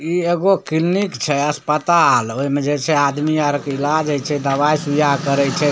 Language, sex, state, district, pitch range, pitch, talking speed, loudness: Maithili, male, Bihar, Samastipur, 140-155 Hz, 145 Hz, 200 wpm, -17 LUFS